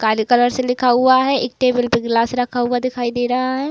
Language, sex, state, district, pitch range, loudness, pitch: Hindi, female, Uttar Pradesh, Budaun, 245-255 Hz, -17 LUFS, 245 Hz